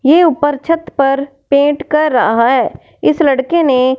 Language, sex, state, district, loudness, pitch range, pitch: Hindi, female, Punjab, Fazilka, -13 LUFS, 260-305 Hz, 280 Hz